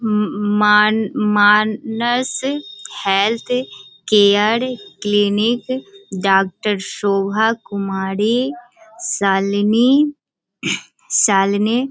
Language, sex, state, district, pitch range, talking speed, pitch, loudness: Hindi, female, Bihar, Sitamarhi, 205-245 Hz, 55 wpm, 215 Hz, -17 LUFS